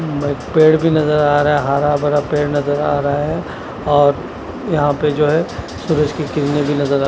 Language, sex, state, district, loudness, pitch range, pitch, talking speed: Hindi, male, Punjab, Kapurthala, -16 LUFS, 145-150 Hz, 145 Hz, 205 wpm